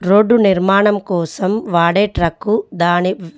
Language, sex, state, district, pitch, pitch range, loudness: Telugu, female, Telangana, Mahabubabad, 190 Hz, 175-205 Hz, -15 LUFS